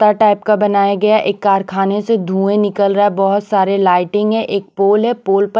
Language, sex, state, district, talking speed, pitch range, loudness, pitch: Hindi, female, Punjab, Pathankot, 235 wpm, 195-210 Hz, -14 LUFS, 200 Hz